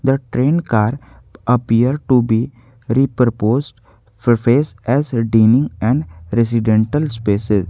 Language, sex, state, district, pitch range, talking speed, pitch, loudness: English, male, Jharkhand, Garhwa, 110-130 Hz, 115 wpm, 115 Hz, -16 LUFS